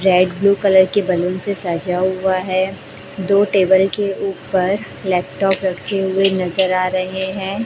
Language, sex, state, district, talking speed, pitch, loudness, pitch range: Hindi, female, Chhattisgarh, Raipur, 155 wpm, 190 Hz, -17 LUFS, 185-195 Hz